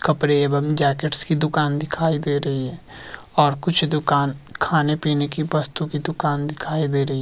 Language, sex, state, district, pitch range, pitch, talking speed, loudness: Hindi, male, Uttarakhand, Tehri Garhwal, 145-155 Hz, 150 Hz, 175 wpm, -21 LUFS